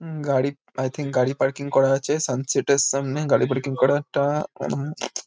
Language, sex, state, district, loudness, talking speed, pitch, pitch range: Bengali, male, West Bengal, Kolkata, -23 LUFS, 180 wpm, 140 Hz, 130-145 Hz